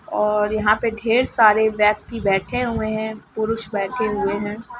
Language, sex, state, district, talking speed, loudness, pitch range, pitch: Hindi, female, Bihar, Lakhisarai, 160 wpm, -20 LUFS, 210-225 Hz, 220 Hz